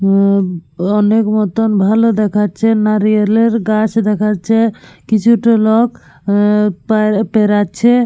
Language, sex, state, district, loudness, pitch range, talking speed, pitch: Bengali, female, Jharkhand, Jamtara, -13 LUFS, 205-225 Hz, 95 wpm, 215 Hz